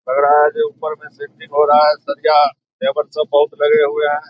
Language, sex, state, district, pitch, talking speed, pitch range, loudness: Hindi, male, Bihar, Saharsa, 150 Hz, 235 wpm, 145-160 Hz, -15 LUFS